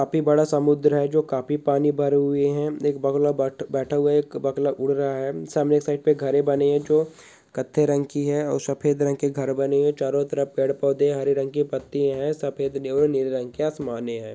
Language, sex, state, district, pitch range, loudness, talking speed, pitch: Hindi, male, Andhra Pradesh, Krishna, 140-145 Hz, -23 LUFS, 230 wpm, 140 Hz